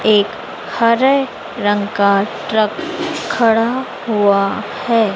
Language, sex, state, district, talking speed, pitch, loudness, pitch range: Hindi, female, Madhya Pradesh, Dhar, 95 wpm, 225 Hz, -16 LUFS, 205-255 Hz